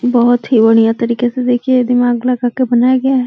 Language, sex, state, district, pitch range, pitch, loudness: Hindi, female, Uttar Pradesh, Deoria, 240-250 Hz, 245 Hz, -12 LUFS